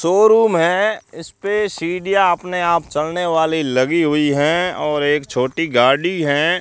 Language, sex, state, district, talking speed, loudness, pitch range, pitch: Hindi, male, Rajasthan, Bikaner, 155 wpm, -17 LUFS, 150-180 Hz, 165 Hz